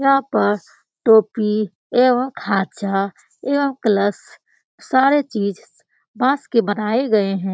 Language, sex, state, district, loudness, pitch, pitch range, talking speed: Hindi, female, Bihar, Lakhisarai, -18 LUFS, 220 Hz, 200-260 Hz, 110 wpm